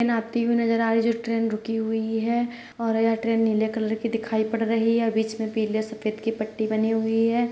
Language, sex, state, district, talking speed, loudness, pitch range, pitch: Hindi, male, Bihar, Purnia, 245 wpm, -24 LUFS, 220-230 Hz, 225 Hz